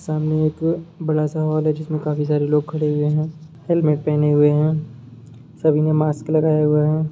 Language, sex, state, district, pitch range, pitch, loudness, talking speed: Hindi, male, Jharkhand, Sahebganj, 150-155 Hz, 155 Hz, -19 LUFS, 195 wpm